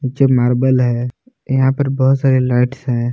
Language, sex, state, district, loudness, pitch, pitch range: Hindi, male, Jharkhand, Palamu, -15 LUFS, 130 Hz, 125-135 Hz